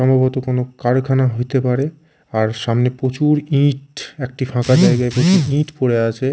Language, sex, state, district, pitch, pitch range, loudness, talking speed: Bengali, male, Odisha, Khordha, 130 Hz, 125-145 Hz, -17 LUFS, 150 wpm